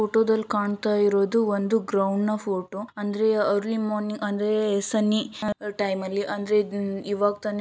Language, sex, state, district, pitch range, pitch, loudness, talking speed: Kannada, female, Karnataka, Shimoga, 200-215 Hz, 210 Hz, -25 LUFS, 135 wpm